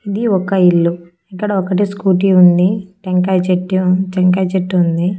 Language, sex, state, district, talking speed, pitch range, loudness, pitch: Telugu, female, Andhra Pradesh, Annamaya, 140 wpm, 180-195 Hz, -14 LUFS, 185 Hz